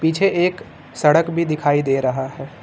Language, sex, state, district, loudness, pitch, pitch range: Hindi, male, Uttar Pradesh, Lucknow, -19 LUFS, 150 Hz, 135-170 Hz